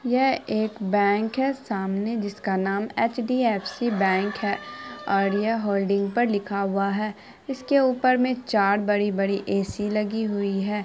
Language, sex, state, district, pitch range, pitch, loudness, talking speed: Hindi, female, Bihar, Araria, 200-240 Hz, 205 Hz, -24 LUFS, 150 wpm